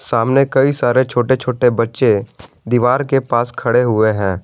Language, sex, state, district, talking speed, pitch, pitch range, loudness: Hindi, male, Jharkhand, Garhwa, 160 wpm, 125 Hz, 115-130 Hz, -15 LUFS